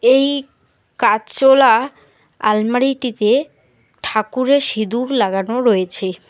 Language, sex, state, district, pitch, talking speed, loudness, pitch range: Bengali, female, West Bengal, Alipurduar, 245 Hz, 65 wpm, -16 LUFS, 215-270 Hz